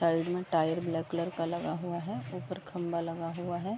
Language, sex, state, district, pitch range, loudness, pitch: Hindi, female, Uttar Pradesh, Varanasi, 165-175 Hz, -34 LUFS, 170 Hz